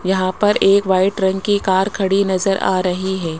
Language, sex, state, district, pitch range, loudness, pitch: Hindi, male, Rajasthan, Jaipur, 185-195 Hz, -17 LUFS, 190 Hz